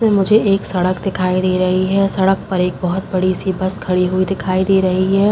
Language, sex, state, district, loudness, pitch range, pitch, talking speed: Hindi, female, Uttar Pradesh, Jalaun, -16 LUFS, 185-195 Hz, 185 Hz, 235 wpm